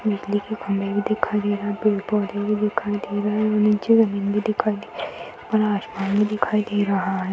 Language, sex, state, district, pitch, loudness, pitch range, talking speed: Hindi, female, Uttar Pradesh, Gorakhpur, 210 Hz, -22 LUFS, 205-215 Hz, 230 wpm